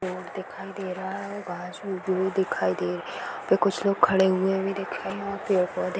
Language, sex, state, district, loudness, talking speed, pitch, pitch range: Hindi, female, Chhattisgarh, Rajnandgaon, -27 LUFS, 170 wpm, 190 Hz, 185-195 Hz